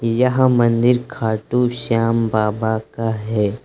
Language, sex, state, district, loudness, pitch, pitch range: Hindi, male, Uttar Pradesh, Lucknow, -18 LUFS, 115 Hz, 110-120 Hz